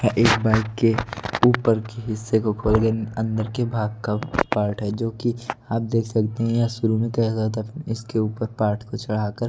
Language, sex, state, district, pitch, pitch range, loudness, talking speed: Hindi, male, Delhi, New Delhi, 110 Hz, 110-115 Hz, -23 LUFS, 195 wpm